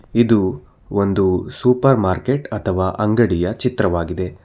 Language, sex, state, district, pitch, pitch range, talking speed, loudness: Kannada, male, Karnataka, Bangalore, 105 Hz, 95-120 Hz, 95 wpm, -18 LUFS